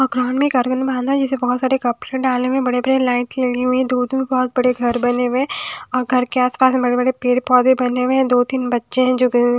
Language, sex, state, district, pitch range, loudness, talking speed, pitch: Hindi, female, Odisha, Nuapada, 250-260 Hz, -17 LUFS, 275 wpm, 255 Hz